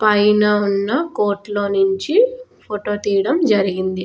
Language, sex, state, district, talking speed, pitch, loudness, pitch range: Telugu, female, Telangana, Nalgonda, 105 wpm, 210 Hz, -17 LUFS, 200-280 Hz